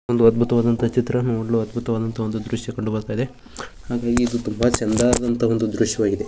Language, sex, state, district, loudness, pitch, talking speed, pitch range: Kannada, male, Karnataka, Bijapur, -21 LUFS, 115 Hz, 145 wpm, 115-120 Hz